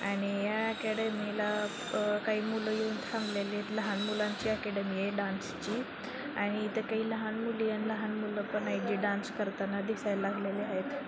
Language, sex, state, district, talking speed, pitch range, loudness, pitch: Marathi, female, Maharashtra, Sindhudurg, 170 wpm, 200-220 Hz, -34 LUFS, 210 Hz